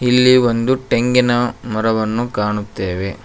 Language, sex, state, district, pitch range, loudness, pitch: Kannada, male, Karnataka, Koppal, 105-125 Hz, -16 LUFS, 120 Hz